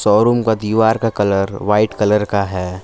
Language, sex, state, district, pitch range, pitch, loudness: Hindi, male, Jharkhand, Palamu, 100-110 Hz, 105 Hz, -16 LUFS